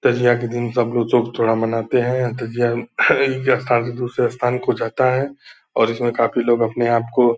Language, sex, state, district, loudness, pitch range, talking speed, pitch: Hindi, male, Bihar, Purnia, -19 LUFS, 115-125 Hz, 220 wpm, 120 Hz